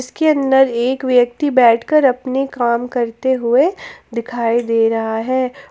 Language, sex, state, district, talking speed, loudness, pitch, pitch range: Hindi, female, Jharkhand, Palamu, 135 wpm, -16 LUFS, 250 Hz, 235-265 Hz